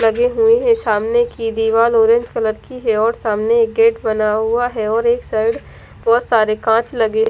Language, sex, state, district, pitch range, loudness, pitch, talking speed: Hindi, female, Punjab, Fazilka, 220-235 Hz, -16 LUFS, 225 Hz, 190 wpm